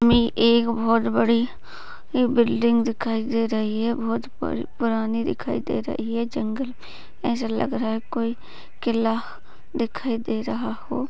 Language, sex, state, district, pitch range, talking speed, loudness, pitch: Hindi, female, Uttar Pradesh, Jalaun, 225-240 Hz, 145 wpm, -24 LUFS, 235 Hz